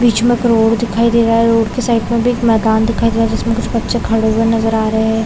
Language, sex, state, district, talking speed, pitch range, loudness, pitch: Hindi, female, Chhattisgarh, Raigarh, 305 wpm, 225-235 Hz, -14 LUFS, 225 Hz